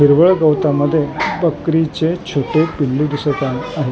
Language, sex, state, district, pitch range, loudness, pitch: Marathi, male, Maharashtra, Mumbai Suburban, 145-160 Hz, -16 LUFS, 150 Hz